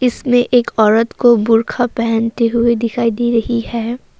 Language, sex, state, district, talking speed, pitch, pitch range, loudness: Hindi, female, Assam, Kamrup Metropolitan, 155 wpm, 235 Hz, 230-240 Hz, -15 LUFS